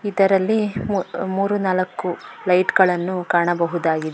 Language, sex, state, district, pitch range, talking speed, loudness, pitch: Kannada, female, Karnataka, Bangalore, 175-195 Hz, 85 wpm, -20 LUFS, 185 Hz